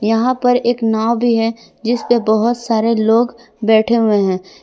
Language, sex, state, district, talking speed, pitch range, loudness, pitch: Hindi, female, Jharkhand, Palamu, 180 wpm, 220-240 Hz, -15 LUFS, 230 Hz